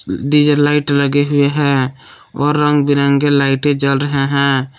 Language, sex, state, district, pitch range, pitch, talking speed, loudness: Hindi, male, Jharkhand, Palamu, 140-145 Hz, 140 Hz, 150 wpm, -14 LUFS